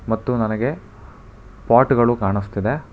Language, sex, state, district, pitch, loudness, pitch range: Kannada, male, Karnataka, Bangalore, 115 Hz, -19 LUFS, 110-120 Hz